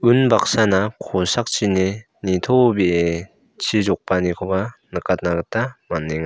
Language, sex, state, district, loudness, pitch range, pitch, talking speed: Garo, male, Meghalaya, South Garo Hills, -20 LUFS, 90-110 Hz, 95 Hz, 75 wpm